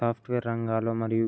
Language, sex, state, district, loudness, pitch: Telugu, male, Andhra Pradesh, Guntur, -29 LUFS, 115 Hz